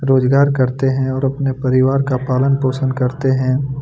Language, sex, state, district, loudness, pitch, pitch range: Hindi, male, Chhattisgarh, Kabirdham, -16 LUFS, 130 Hz, 130-135 Hz